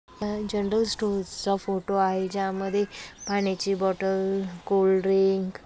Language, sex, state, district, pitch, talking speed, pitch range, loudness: Marathi, female, Maharashtra, Aurangabad, 195 Hz, 115 wpm, 190-205 Hz, -26 LUFS